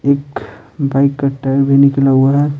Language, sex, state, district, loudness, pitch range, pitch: Hindi, male, Bihar, Patna, -13 LUFS, 135-140 Hz, 140 Hz